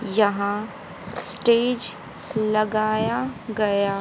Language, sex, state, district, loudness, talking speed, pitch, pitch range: Hindi, female, Haryana, Jhajjar, -21 LUFS, 60 wpm, 215 Hz, 205-235 Hz